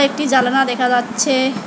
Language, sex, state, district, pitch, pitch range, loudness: Bengali, female, West Bengal, Alipurduar, 260 Hz, 245-270 Hz, -16 LUFS